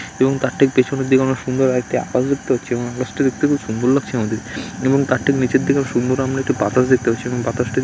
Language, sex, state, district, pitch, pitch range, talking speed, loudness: Bengali, male, West Bengal, Dakshin Dinajpur, 130 Hz, 125-135 Hz, 250 wpm, -18 LUFS